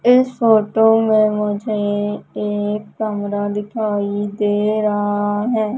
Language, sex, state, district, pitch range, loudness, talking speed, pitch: Hindi, female, Madhya Pradesh, Umaria, 205-220 Hz, -18 LUFS, 105 wpm, 210 Hz